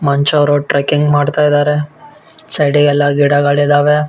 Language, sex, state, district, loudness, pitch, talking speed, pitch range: Kannada, male, Karnataka, Bellary, -12 LUFS, 145 Hz, 130 wpm, 145-150 Hz